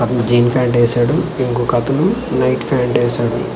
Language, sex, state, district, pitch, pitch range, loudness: Telugu, male, Andhra Pradesh, Manyam, 120 Hz, 120-125 Hz, -15 LUFS